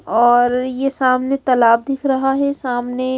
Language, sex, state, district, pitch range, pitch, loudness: Hindi, female, Haryana, Charkhi Dadri, 245-270 Hz, 255 Hz, -16 LUFS